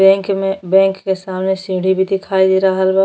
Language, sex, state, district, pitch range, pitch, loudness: Bhojpuri, female, Uttar Pradesh, Deoria, 190-195 Hz, 190 Hz, -15 LUFS